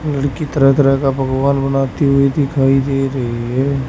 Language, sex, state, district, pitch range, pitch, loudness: Hindi, male, Haryana, Rohtak, 135-140 Hz, 135 Hz, -15 LUFS